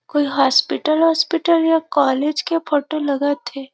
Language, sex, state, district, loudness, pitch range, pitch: Chhattisgarhi, female, Chhattisgarh, Rajnandgaon, -18 LUFS, 280-325 Hz, 300 Hz